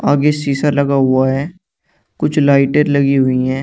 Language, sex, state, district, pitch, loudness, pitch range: Hindi, male, Uttar Pradesh, Shamli, 140 Hz, -14 LUFS, 135-150 Hz